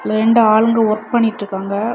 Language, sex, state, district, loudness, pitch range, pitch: Tamil, female, Tamil Nadu, Kanyakumari, -15 LUFS, 215-230 Hz, 215 Hz